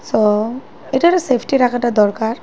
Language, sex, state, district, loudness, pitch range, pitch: Bengali, female, Assam, Hailakandi, -16 LUFS, 215-260 Hz, 240 Hz